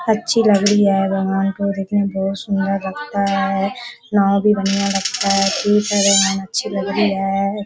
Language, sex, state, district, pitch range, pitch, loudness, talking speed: Hindi, female, Bihar, Kishanganj, 195-205 Hz, 195 Hz, -17 LUFS, 165 wpm